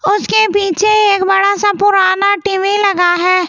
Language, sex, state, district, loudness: Hindi, female, Delhi, New Delhi, -12 LUFS